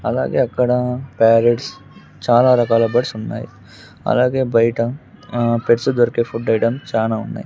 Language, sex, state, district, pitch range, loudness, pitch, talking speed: Telugu, male, Andhra Pradesh, Sri Satya Sai, 115-125 Hz, -17 LUFS, 120 Hz, 130 wpm